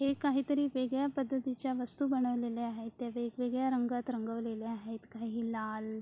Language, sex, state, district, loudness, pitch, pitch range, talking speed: Marathi, female, Maharashtra, Sindhudurg, -35 LUFS, 245 Hz, 230-265 Hz, 150 wpm